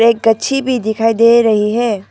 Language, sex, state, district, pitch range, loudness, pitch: Hindi, female, Arunachal Pradesh, Papum Pare, 220-235 Hz, -13 LUFS, 230 Hz